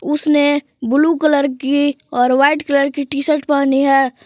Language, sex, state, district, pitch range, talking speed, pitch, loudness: Hindi, female, Jharkhand, Palamu, 275-295 Hz, 170 wpm, 285 Hz, -15 LUFS